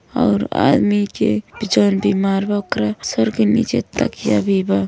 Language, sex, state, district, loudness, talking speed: Bhojpuri, female, Uttar Pradesh, Gorakhpur, -17 LUFS, 160 wpm